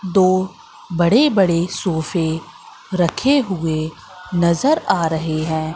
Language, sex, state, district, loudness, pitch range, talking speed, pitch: Hindi, female, Madhya Pradesh, Katni, -18 LUFS, 160-185 Hz, 105 wpm, 175 Hz